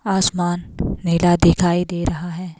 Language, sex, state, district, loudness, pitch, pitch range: Hindi, female, Himachal Pradesh, Shimla, -19 LUFS, 175 Hz, 170-180 Hz